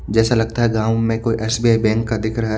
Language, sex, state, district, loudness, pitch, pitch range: Hindi, male, Haryana, Charkhi Dadri, -18 LUFS, 115 Hz, 110-115 Hz